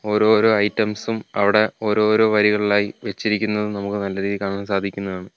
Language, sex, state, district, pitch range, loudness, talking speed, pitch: Malayalam, male, Kerala, Kollam, 100-110 Hz, -20 LUFS, 125 wpm, 105 Hz